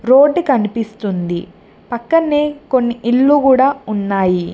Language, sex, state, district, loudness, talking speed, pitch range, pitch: Telugu, female, Telangana, Mahabubabad, -15 LUFS, 95 wpm, 200-275 Hz, 240 Hz